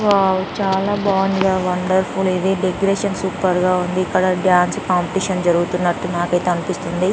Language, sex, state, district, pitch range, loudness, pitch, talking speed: Telugu, female, Andhra Pradesh, Anantapur, 180-190 Hz, -18 LUFS, 185 Hz, 145 wpm